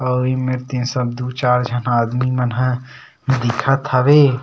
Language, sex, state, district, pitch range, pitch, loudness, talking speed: Chhattisgarhi, male, Chhattisgarh, Sarguja, 125-130 Hz, 125 Hz, -18 LUFS, 150 wpm